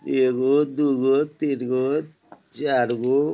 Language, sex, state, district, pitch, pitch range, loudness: Bajjika, male, Bihar, Vaishali, 135 Hz, 130-150 Hz, -22 LUFS